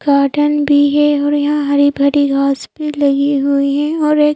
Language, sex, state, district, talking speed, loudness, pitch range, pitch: Hindi, female, Madhya Pradesh, Bhopal, 190 wpm, -14 LUFS, 280-295 Hz, 285 Hz